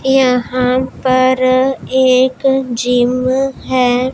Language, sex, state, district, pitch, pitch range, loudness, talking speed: Hindi, male, Punjab, Pathankot, 255 Hz, 250-260 Hz, -13 LUFS, 70 wpm